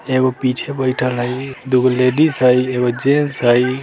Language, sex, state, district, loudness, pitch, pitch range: Bajjika, male, Bihar, Vaishali, -16 LUFS, 130 Hz, 125-135 Hz